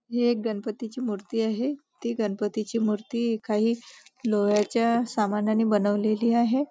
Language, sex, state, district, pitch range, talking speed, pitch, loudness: Marathi, female, Maharashtra, Nagpur, 210-235 Hz, 115 wpm, 225 Hz, -26 LUFS